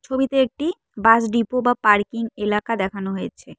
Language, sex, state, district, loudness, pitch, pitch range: Bengali, female, West Bengal, Cooch Behar, -20 LUFS, 230 Hz, 210-255 Hz